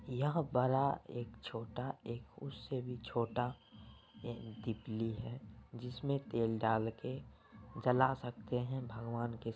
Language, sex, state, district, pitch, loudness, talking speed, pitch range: Hindi, male, Bihar, Saran, 120 Hz, -39 LUFS, 130 wpm, 115-130 Hz